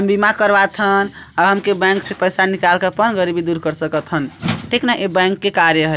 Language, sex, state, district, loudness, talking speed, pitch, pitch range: Chhattisgarhi, male, Chhattisgarh, Sarguja, -16 LUFS, 240 wpm, 190 Hz, 175-200 Hz